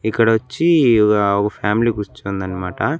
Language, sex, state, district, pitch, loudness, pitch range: Telugu, male, Andhra Pradesh, Annamaya, 105 Hz, -17 LUFS, 100-115 Hz